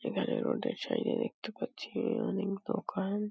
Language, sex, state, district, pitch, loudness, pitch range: Bengali, female, West Bengal, Paschim Medinipur, 210 Hz, -35 LUFS, 200-230 Hz